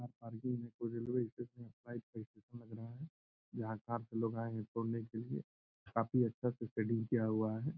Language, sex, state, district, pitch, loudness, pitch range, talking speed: Hindi, male, Bihar, Purnia, 115 Hz, -41 LUFS, 110-120 Hz, 170 wpm